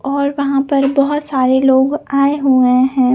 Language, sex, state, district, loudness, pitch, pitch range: Hindi, female, Punjab, Fazilka, -14 LUFS, 275 Hz, 260-280 Hz